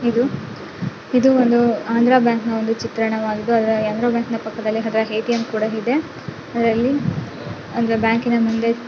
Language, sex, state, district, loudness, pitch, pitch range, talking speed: Kannada, female, Karnataka, Dakshina Kannada, -19 LUFS, 230 Hz, 220-240 Hz, 115 wpm